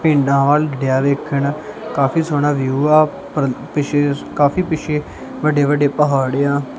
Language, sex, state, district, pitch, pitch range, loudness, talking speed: Punjabi, male, Punjab, Kapurthala, 145 Hz, 140-150 Hz, -17 LUFS, 150 wpm